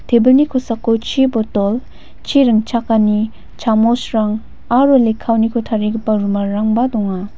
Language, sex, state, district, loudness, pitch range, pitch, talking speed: Garo, female, Meghalaya, West Garo Hills, -15 LUFS, 215-240 Hz, 225 Hz, 95 wpm